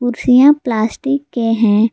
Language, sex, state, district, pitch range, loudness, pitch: Hindi, female, Jharkhand, Garhwa, 225-275 Hz, -14 LUFS, 245 Hz